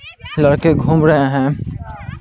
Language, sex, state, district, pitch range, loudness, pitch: Hindi, male, Bihar, Patna, 135-155 Hz, -15 LUFS, 145 Hz